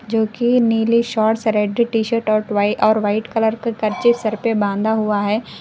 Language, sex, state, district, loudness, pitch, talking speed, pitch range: Hindi, female, Karnataka, Koppal, -18 LUFS, 220 Hz, 180 wpm, 215-230 Hz